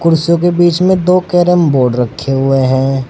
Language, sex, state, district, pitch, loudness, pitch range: Hindi, male, Uttar Pradesh, Saharanpur, 165 Hz, -11 LUFS, 135-175 Hz